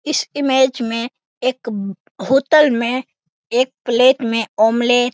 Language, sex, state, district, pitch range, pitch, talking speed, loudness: Hindi, male, Bihar, Sitamarhi, 230-265 Hz, 245 Hz, 130 wpm, -17 LUFS